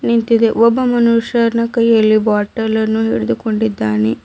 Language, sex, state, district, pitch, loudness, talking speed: Kannada, female, Karnataka, Bidar, 220 Hz, -14 LUFS, 85 wpm